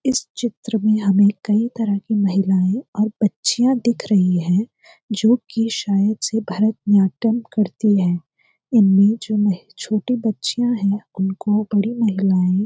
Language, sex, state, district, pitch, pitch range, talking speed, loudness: Hindi, female, Uttarakhand, Uttarkashi, 210 Hz, 195-225 Hz, 140 wpm, -19 LUFS